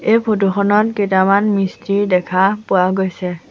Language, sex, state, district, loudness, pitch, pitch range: Assamese, female, Assam, Sonitpur, -16 LUFS, 195 Hz, 190-205 Hz